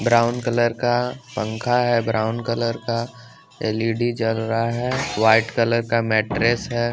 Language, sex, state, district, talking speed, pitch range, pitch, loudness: Hindi, male, Bihar, West Champaran, 145 wpm, 115-120 Hz, 115 Hz, -21 LUFS